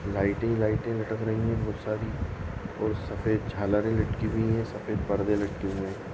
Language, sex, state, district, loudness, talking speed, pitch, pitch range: Hindi, male, Goa, North and South Goa, -29 LUFS, 205 wpm, 105 Hz, 100-110 Hz